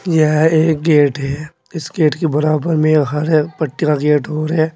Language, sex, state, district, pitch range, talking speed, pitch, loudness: Hindi, male, Uttar Pradesh, Saharanpur, 150-160 Hz, 215 wpm, 155 Hz, -15 LUFS